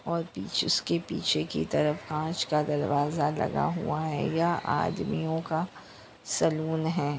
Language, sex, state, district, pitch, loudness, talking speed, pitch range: Hindi, female, Maharashtra, Chandrapur, 155 Hz, -29 LUFS, 135 wpm, 145-160 Hz